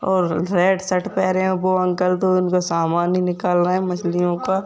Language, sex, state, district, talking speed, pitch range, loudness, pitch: Hindi, male, Uttar Pradesh, Jyotiba Phule Nagar, 220 wpm, 175-185 Hz, -19 LUFS, 180 Hz